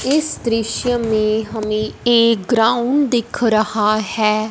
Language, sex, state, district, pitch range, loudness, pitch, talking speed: Hindi, female, Punjab, Fazilka, 215-240 Hz, -17 LUFS, 225 Hz, 120 wpm